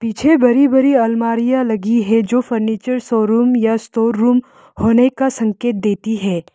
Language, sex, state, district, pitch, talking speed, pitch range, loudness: Hindi, female, Arunachal Pradesh, Lower Dibang Valley, 230 Hz, 155 wpm, 225-250 Hz, -15 LUFS